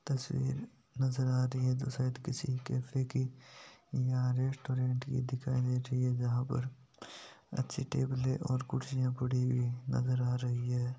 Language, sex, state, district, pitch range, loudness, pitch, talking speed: Hindi, male, Rajasthan, Nagaur, 125-130 Hz, -34 LUFS, 130 Hz, 145 wpm